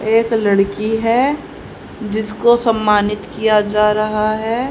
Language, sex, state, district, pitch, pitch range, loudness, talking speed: Hindi, female, Haryana, Rohtak, 215 Hz, 210-230 Hz, -16 LUFS, 115 wpm